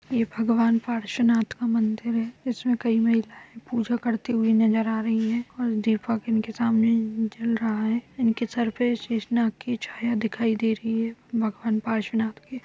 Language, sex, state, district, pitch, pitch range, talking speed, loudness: Hindi, female, Uttar Pradesh, Budaun, 230 Hz, 225-235 Hz, 175 wpm, -25 LUFS